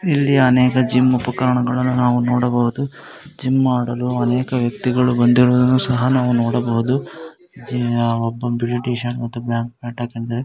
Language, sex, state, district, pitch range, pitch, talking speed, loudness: Kannada, male, Karnataka, Dharwad, 120-125 Hz, 125 Hz, 120 wpm, -18 LUFS